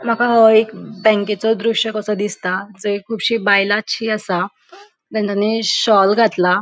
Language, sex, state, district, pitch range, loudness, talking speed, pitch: Konkani, female, Goa, North and South Goa, 200-225 Hz, -16 LUFS, 125 wpm, 215 Hz